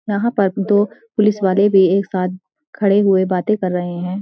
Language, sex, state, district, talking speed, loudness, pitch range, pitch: Hindi, female, Uttarakhand, Uttarkashi, 200 wpm, -17 LUFS, 185-205 Hz, 195 Hz